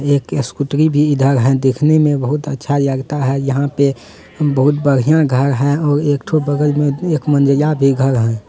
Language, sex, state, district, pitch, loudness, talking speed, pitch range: Hindi, male, Bihar, Jamui, 140 Hz, -15 LUFS, 190 wpm, 135-150 Hz